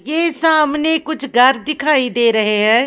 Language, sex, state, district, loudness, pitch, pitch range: Hindi, female, Punjab, Pathankot, -14 LUFS, 290 Hz, 240-315 Hz